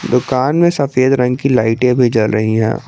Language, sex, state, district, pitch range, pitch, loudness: Hindi, male, Jharkhand, Garhwa, 115-135 Hz, 125 Hz, -14 LUFS